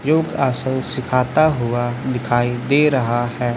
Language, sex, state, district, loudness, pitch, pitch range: Hindi, male, Chhattisgarh, Raipur, -18 LUFS, 130 Hz, 120-135 Hz